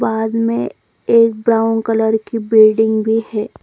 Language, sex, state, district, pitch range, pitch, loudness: Hindi, female, Chandigarh, Chandigarh, 220-230 Hz, 225 Hz, -15 LUFS